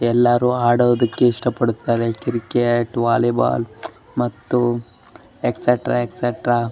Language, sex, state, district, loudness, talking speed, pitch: Kannada, male, Karnataka, Bellary, -19 LUFS, 90 wpm, 120 Hz